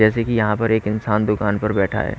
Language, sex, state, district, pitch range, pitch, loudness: Hindi, male, Haryana, Rohtak, 105-110 Hz, 105 Hz, -19 LUFS